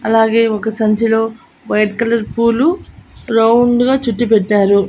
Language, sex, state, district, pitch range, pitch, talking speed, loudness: Telugu, female, Andhra Pradesh, Annamaya, 220-235 Hz, 225 Hz, 125 wpm, -14 LUFS